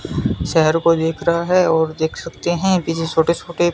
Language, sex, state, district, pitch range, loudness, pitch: Hindi, male, Rajasthan, Bikaner, 160-175 Hz, -18 LUFS, 165 Hz